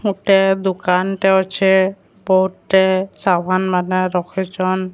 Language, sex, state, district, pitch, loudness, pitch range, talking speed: Odia, female, Odisha, Sambalpur, 190 Hz, -16 LUFS, 185-195 Hz, 85 wpm